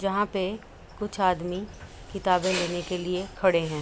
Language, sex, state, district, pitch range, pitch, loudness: Hindi, female, Uttar Pradesh, Budaun, 180-195 Hz, 185 Hz, -27 LUFS